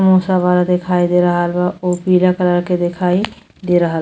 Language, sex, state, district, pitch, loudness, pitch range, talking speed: Bhojpuri, female, Uttar Pradesh, Deoria, 180 Hz, -15 LUFS, 175-185 Hz, 210 wpm